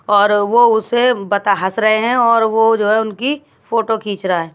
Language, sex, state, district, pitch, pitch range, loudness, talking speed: Hindi, female, Bihar, West Champaran, 220 Hz, 205-230 Hz, -15 LUFS, 210 wpm